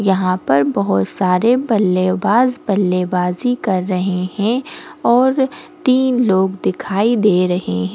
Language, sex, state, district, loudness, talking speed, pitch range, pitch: Hindi, female, Goa, North and South Goa, -16 LUFS, 130 wpm, 180-240 Hz, 190 Hz